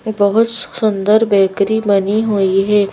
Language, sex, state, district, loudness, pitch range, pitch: Hindi, female, Madhya Pradesh, Bhopal, -14 LUFS, 200-220 Hz, 205 Hz